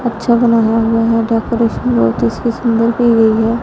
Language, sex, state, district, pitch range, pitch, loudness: Hindi, female, Punjab, Pathankot, 225-235 Hz, 230 Hz, -13 LUFS